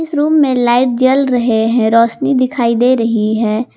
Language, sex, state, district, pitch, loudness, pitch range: Hindi, female, Jharkhand, Garhwa, 245 Hz, -12 LUFS, 230-260 Hz